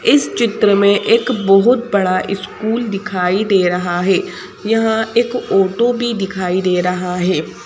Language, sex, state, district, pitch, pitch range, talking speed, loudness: Hindi, female, Madhya Pradesh, Bhopal, 200 Hz, 185-225 Hz, 150 wpm, -15 LUFS